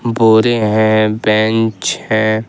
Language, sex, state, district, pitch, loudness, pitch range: Hindi, male, Jharkhand, Ranchi, 110 Hz, -13 LUFS, 110-115 Hz